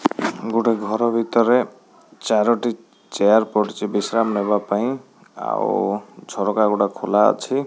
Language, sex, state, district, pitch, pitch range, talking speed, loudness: Odia, male, Odisha, Khordha, 110 Hz, 105-115 Hz, 110 wpm, -20 LUFS